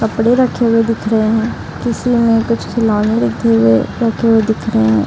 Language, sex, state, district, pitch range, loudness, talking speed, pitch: Hindi, female, Bihar, Gaya, 210-230 Hz, -14 LUFS, 200 wpm, 225 Hz